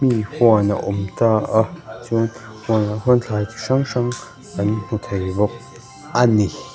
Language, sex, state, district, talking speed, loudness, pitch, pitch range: Mizo, male, Mizoram, Aizawl, 170 wpm, -19 LUFS, 110 Hz, 105-120 Hz